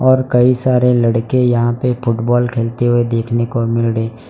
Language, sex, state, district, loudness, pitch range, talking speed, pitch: Hindi, male, Gujarat, Valsad, -15 LUFS, 115-125 Hz, 195 wpm, 120 Hz